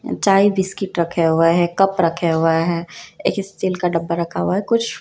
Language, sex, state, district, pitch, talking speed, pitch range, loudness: Hindi, female, Madhya Pradesh, Dhar, 175 Hz, 205 wpm, 165-195 Hz, -18 LUFS